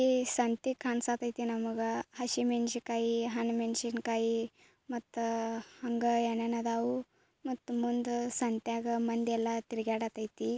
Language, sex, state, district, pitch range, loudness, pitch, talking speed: Kannada, female, Karnataka, Belgaum, 230-240 Hz, -34 LUFS, 235 Hz, 95 wpm